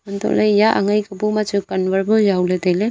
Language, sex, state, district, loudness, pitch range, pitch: Wancho, female, Arunachal Pradesh, Longding, -17 LUFS, 190-210 Hz, 200 Hz